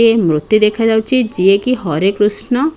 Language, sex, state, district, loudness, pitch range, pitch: Odia, female, Odisha, Khordha, -13 LUFS, 195-240 Hz, 215 Hz